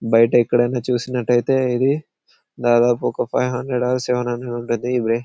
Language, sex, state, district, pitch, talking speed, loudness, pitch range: Telugu, male, Telangana, Karimnagar, 125 Hz, 170 wpm, -19 LUFS, 120-125 Hz